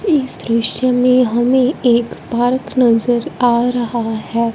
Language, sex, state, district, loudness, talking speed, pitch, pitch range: Hindi, female, Punjab, Fazilka, -15 LUFS, 130 wpm, 245 Hz, 235-255 Hz